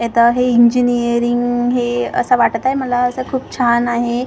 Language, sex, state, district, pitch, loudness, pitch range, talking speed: Marathi, female, Maharashtra, Gondia, 245 Hz, -15 LUFS, 235-250 Hz, 155 wpm